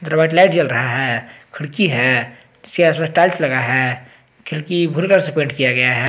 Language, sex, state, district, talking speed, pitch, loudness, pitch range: Hindi, male, Jharkhand, Garhwa, 185 wpm, 145 Hz, -16 LUFS, 125-170 Hz